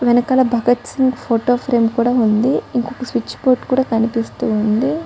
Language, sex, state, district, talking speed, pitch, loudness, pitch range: Telugu, female, Telangana, Karimnagar, 155 wpm, 245 Hz, -17 LUFS, 230-255 Hz